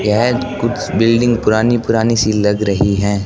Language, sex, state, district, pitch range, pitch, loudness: Hindi, male, Rajasthan, Bikaner, 105-115 Hz, 110 Hz, -14 LUFS